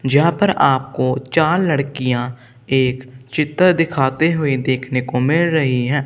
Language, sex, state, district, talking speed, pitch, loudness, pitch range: Hindi, male, Punjab, Kapurthala, 140 wpm, 135 Hz, -17 LUFS, 130-160 Hz